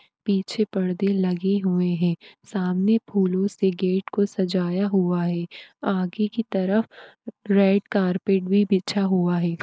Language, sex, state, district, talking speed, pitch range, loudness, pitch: Hindi, female, Uttar Pradesh, Etah, 120 wpm, 185-200 Hz, -23 LUFS, 195 Hz